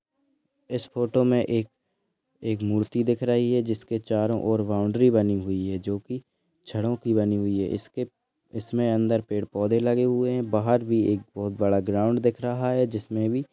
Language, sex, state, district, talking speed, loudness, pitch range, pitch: Hindi, male, Maharashtra, Chandrapur, 180 wpm, -25 LUFS, 105-120 Hz, 115 Hz